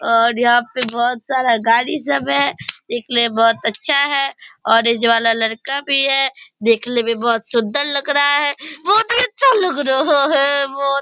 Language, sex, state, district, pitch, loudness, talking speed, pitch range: Hindi, female, Bihar, Purnia, 260 Hz, -15 LUFS, 175 wpm, 230-285 Hz